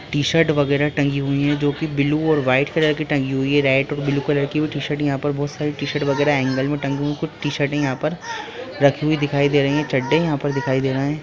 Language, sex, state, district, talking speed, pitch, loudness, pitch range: Hindi, male, Bihar, Jahanabad, 265 wpm, 145 Hz, -20 LUFS, 140-150 Hz